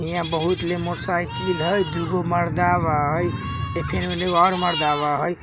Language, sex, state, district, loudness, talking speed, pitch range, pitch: Bajjika, male, Bihar, Vaishali, -21 LUFS, 130 wpm, 150-175 Hz, 175 Hz